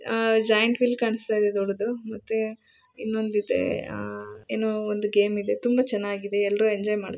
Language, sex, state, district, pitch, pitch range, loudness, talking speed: Kannada, female, Karnataka, Shimoga, 215 Hz, 205-225 Hz, -25 LUFS, 140 wpm